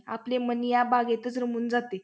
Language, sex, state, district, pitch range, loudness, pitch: Marathi, female, Maharashtra, Pune, 235-245 Hz, -27 LUFS, 240 Hz